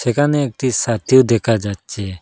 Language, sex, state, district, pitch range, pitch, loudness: Bengali, male, Assam, Hailakandi, 105-130 Hz, 120 Hz, -17 LUFS